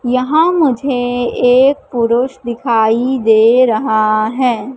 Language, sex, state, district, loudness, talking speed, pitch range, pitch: Hindi, female, Madhya Pradesh, Katni, -13 LUFS, 100 wpm, 230-265 Hz, 245 Hz